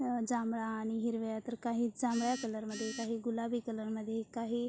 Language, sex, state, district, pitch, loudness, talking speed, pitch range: Marathi, female, Maharashtra, Sindhudurg, 230 Hz, -37 LUFS, 180 wpm, 225-235 Hz